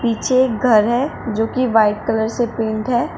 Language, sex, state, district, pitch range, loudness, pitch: Hindi, female, Uttar Pradesh, Shamli, 220-250 Hz, -17 LUFS, 230 Hz